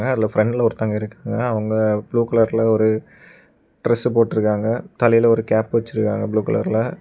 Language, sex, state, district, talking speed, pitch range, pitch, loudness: Tamil, male, Tamil Nadu, Kanyakumari, 145 wpm, 110-115 Hz, 115 Hz, -19 LUFS